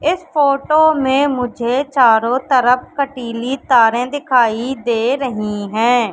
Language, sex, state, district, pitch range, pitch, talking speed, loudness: Hindi, female, Madhya Pradesh, Katni, 235-275 Hz, 250 Hz, 115 wpm, -15 LUFS